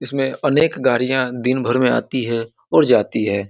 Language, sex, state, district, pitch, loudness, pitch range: Hindi, male, Bihar, Muzaffarpur, 125 Hz, -18 LUFS, 115-130 Hz